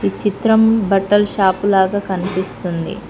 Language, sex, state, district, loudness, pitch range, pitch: Telugu, female, Telangana, Mahabubabad, -16 LUFS, 185-205 Hz, 195 Hz